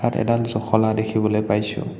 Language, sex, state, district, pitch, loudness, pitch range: Assamese, male, Assam, Hailakandi, 110 Hz, -21 LUFS, 105-110 Hz